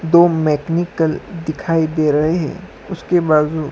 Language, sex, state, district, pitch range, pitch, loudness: Hindi, male, Maharashtra, Washim, 155-170 Hz, 160 Hz, -17 LUFS